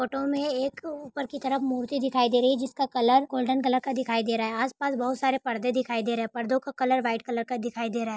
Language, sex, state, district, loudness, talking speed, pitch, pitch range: Hindi, female, Jharkhand, Jamtara, -27 LUFS, 280 wpm, 255 Hz, 240-270 Hz